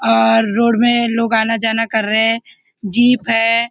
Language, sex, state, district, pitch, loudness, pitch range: Hindi, female, Maharashtra, Nagpur, 225 Hz, -14 LUFS, 220-235 Hz